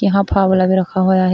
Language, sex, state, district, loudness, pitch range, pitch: Hindi, female, Uttar Pradesh, Shamli, -15 LUFS, 185-195 Hz, 190 Hz